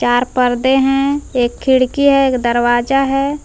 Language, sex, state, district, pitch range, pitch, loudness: Hindi, female, Jharkhand, Palamu, 245-275 Hz, 260 Hz, -14 LUFS